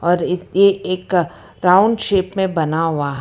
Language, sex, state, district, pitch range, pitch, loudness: Hindi, female, Karnataka, Bangalore, 165-190 Hz, 180 Hz, -17 LUFS